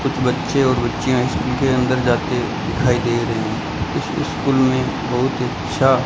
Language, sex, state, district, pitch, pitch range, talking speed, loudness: Hindi, male, Rajasthan, Bikaner, 125 Hz, 120-130 Hz, 180 wpm, -19 LUFS